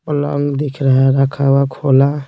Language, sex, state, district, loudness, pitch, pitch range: Hindi, male, Bihar, Patna, -14 LUFS, 140 Hz, 135-145 Hz